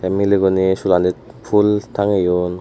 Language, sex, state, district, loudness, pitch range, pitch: Chakma, female, Tripura, West Tripura, -17 LUFS, 90-105 Hz, 95 Hz